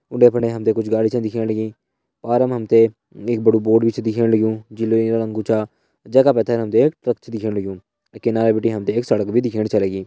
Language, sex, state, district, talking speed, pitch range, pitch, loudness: Garhwali, male, Uttarakhand, Tehri Garhwal, 260 wpm, 110-115 Hz, 115 Hz, -18 LUFS